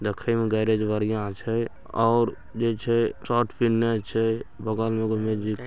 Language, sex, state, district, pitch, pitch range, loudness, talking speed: Maithili, male, Bihar, Saharsa, 110 Hz, 110-115 Hz, -25 LUFS, 170 wpm